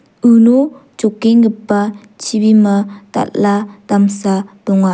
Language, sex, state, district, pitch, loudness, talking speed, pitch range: Garo, female, Meghalaya, South Garo Hills, 210 Hz, -13 LUFS, 75 wpm, 200-230 Hz